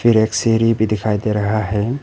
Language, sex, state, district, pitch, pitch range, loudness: Hindi, male, Arunachal Pradesh, Papum Pare, 110 Hz, 105-115 Hz, -17 LUFS